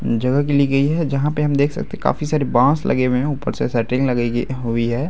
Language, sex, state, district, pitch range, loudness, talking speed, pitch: Hindi, male, Bihar, Araria, 120-145 Hz, -19 LUFS, 280 wpm, 135 Hz